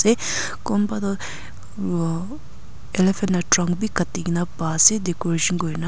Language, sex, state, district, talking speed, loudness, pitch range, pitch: Nagamese, female, Nagaland, Kohima, 145 wpm, -21 LUFS, 170-200 Hz, 180 Hz